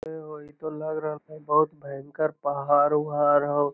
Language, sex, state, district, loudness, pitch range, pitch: Magahi, male, Bihar, Lakhisarai, -25 LUFS, 145-155 Hz, 150 Hz